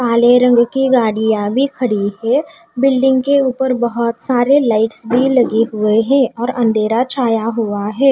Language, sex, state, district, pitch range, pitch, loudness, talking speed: Hindi, female, Haryana, Charkhi Dadri, 225-260 Hz, 240 Hz, -14 LUFS, 155 wpm